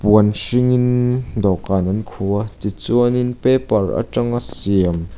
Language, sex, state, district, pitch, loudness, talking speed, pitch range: Mizo, male, Mizoram, Aizawl, 105 Hz, -18 LUFS, 115 wpm, 100-125 Hz